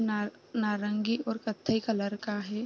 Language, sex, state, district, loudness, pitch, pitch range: Hindi, female, Bihar, East Champaran, -32 LUFS, 215 Hz, 210-225 Hz